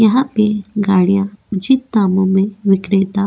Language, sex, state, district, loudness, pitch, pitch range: Hindi, female, Goa, North and South Goa, -15 LUFS, 200 Hz, 195-215 Hz